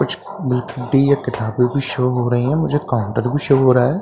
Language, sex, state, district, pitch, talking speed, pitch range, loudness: Hindi, male, Bihar, Katihar, 125 Hz, 210 wpm, 125-140 Hz, -18 LUFS